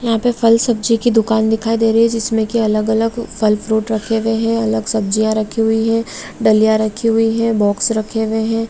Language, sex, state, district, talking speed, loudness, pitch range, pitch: Hindi, female, Bihar, Araria, 200 wpm, -15 LUFS, 220-225 Hz, 225 Hz